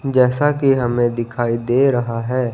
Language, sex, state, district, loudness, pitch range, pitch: Hindi, male, Himachal Pradesh, Shimla, -17 LUFS, 120-135 Hz, 125 Hz